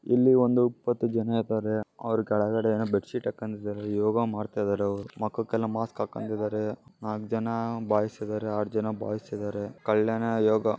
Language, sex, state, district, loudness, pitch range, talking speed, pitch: Kannada, male, Karnataka, Bellary, -28 LUFS, 105-115 Hz, 150 wpm, 110 Hz